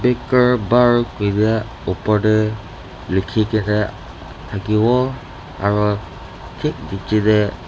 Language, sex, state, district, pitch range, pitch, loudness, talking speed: Nagamese, male, Nagaland, Dimapur, 100-120 Hz, 105 Hz, -18 LUFS, 85 wpm